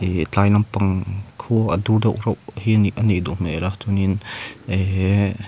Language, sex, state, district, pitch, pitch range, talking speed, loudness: Mizo, male, Mizoram, Aizawl, 100 Hz, 95-110 Hz, 195 wpm, -20 LUFS